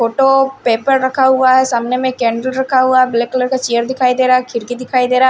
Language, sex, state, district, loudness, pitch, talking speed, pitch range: Hindi, female, Punjab, Kapurthala, -14 LUFS, 255 Hz, 270 wpm, 245-260 Hz